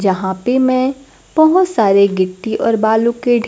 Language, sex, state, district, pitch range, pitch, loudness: Hindi, female, Bihar, Kaimur, 200-255 Hz, 230 Hz, -14 LUFS